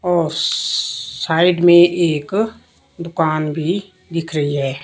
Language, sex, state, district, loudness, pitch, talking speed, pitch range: Hindi, female, Himachal Pradesh, Shimla, -17 LUFS, 170 Hz, 125 wpm, 155-175 Hz